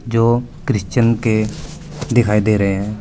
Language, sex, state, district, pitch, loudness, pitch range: Hindi, male, Uttar Pradesh, Saharanpur, 115 Hz, -17 LUFS, 105-120 Hz